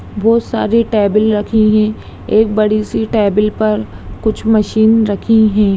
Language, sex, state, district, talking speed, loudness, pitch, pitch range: Hindi, female, Bihar, Darbhanga, 135 wpm, -13 LUFS, 215 Hz, 210-220 Hz